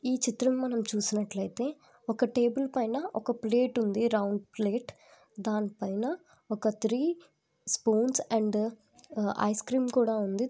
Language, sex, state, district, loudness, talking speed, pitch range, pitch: Telugu, female, Andhra Pradesh, Visakhapatnam, -30 LUFS, 120 wpm, 210-250 Hz, 225 Hz